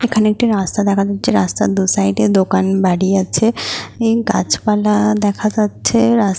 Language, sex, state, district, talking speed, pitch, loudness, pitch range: Bengali, female, West Bengal, Paschim Medinipur, 150 wpm, 205 Hz, -15 LUFS, 195-215 Hz